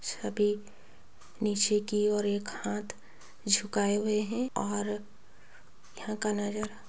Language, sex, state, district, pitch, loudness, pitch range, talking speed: Hindi, female, Bihar, Begusarai, 210 Hz, -31 LUFS, 205-215 Hz, 120 wpm